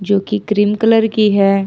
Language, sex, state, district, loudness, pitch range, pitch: Hindi, female, Jharkhand, Ranchi, -14 LUFS, 200-215 Hz, 205 Hz